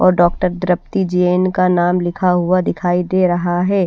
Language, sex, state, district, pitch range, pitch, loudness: Hindi, female, Haryana, Rohtak, 175-185 Hz, 180 Hz, -16 LUFS